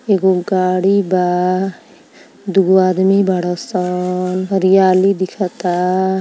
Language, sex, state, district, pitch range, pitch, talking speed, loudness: Bhojpuri, female, Uttar Pradesh, Ghazipur, 180-190 Hz, 185 Hz, 75 wpm, -15 LUFS